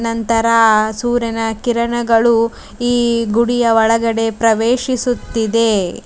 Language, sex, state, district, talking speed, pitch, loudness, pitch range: Kannada, female, Karnataka, Bidar, 80 wpm, 230 Hz, -15 LUFS, 225-235 Hz